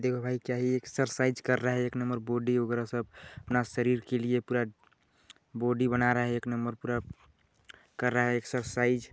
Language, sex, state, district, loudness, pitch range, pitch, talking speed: Hindi, male, Chhattisgarh, Balrampur, -30 LUFS, 120-125 Hz, 125 Hz, 195 wpm